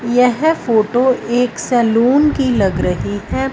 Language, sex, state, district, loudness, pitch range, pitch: Hindi, female, Punjab, Fazilka, -15 LUFS, 230-265 Hz, 245 Hz